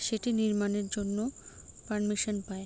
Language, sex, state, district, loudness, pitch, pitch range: Bengali, female, West Bengal, Jalpaiguri, -32 LUFS, 210 Hz, 205-220 Hz